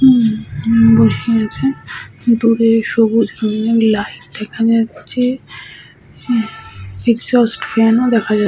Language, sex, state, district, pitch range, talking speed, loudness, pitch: Bengali, female, West Bengal, Purulia, 205-230 Hz, 100 wpm, -14 LUFS, 225 Hz